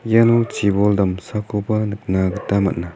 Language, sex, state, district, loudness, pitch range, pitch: Garo, male, Meghalaya, West Garo Hills, -19 LUFS, 95-110 Hz, 105 Hz